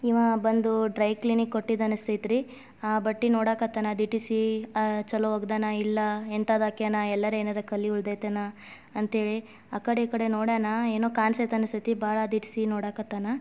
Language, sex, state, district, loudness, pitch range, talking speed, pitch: Kannada, female, Karnataka, Dharwad, -27 LUFS, 215-225 Hz, 140 wpm, 220 Hz